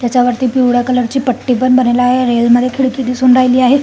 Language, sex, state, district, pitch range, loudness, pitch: Marathi, female, Maharashtra, Solapur, 245-255 Hz, -12 LUFS, 250 Hz